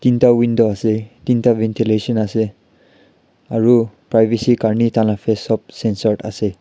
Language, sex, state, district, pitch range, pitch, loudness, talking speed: Nagamese, male, Nagaland, Kohima, 110-120 Hz, 110 Hz, -17 LUFS, 135 wpm